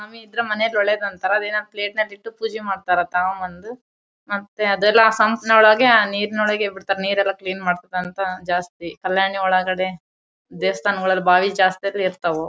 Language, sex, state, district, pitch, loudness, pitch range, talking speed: Kannada, female, Karnataka, Bellary, 195 Hz, -19 LUFS, 185-210 Hz, 165 wpm